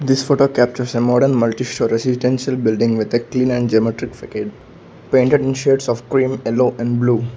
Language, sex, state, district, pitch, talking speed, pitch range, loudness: English, male, Arunachal Pradesh, Lower Dibang Valley, 125 Hz, 185 wpm, 120-130 Hz, -17 LUFS